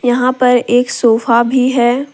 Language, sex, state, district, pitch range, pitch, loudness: Hindi, female, Jharkhand, Deoghar, 240-255 Hz, 245 Hz, -12 LUFS